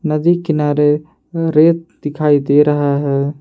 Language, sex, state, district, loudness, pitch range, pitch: Hindi, male, Jharkhand, Palamu, -14 LUFS, 145-160 Hz, 150 Hz